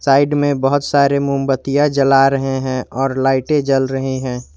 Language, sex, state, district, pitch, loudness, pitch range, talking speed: Hindi, male, Jharkhand, Garhwa, 135 Hz, -16 LUFS, 135-140 Hz, 170 wpm